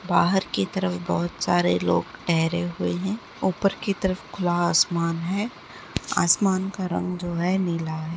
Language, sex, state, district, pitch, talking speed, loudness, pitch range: Hindi, female, Uttar Pradesh, Etah, 175 Hz, 160 wpm, -24 LUFS, 160-190 Hz